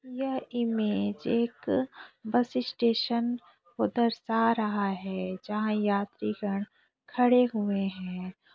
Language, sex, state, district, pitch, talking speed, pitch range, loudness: Hindi, female, Chhattisgarh, Korba, 225 Hz, 105 wpm, 205-245 Hz, -29 LUFS